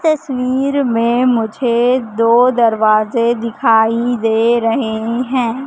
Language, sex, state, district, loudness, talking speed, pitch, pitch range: Hindi, female, Madhya Pradesh, Katni, -14 LUFS, 95 wpm, 235 Hz, 225-255 Hz